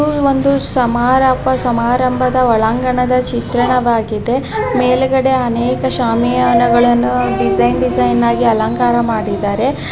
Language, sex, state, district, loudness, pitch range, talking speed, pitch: Kannada, female, Karnataka, Chamarajanagar, -14 LUFS, 220-255 Hz, 80 wpm, 240 Hz